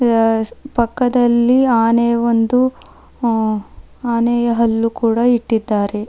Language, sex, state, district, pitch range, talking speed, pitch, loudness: Kannada, female, Karnataka, Bidar, 225-240 Hz, 90 wpm, 235 Hz, -16 LUFS